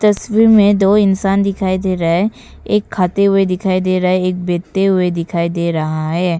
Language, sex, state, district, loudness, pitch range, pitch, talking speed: Hindi, female, Arunachal Pradesh, Papum Pare, -15 LUFS, 175-200 Hz, 185 Hz, 205 wpm